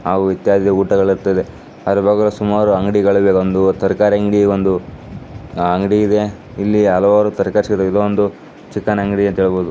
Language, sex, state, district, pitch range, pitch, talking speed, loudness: Kannada, male, Karnataka, Dakshina Kannada, 95-105 Hz, 100 Hz, 80 wpm, -15 LUFS